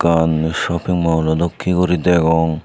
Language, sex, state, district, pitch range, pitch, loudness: Chakma, male, Tripura, Unakoti, 80-90 Hz, 80 Hz, -16 LUFS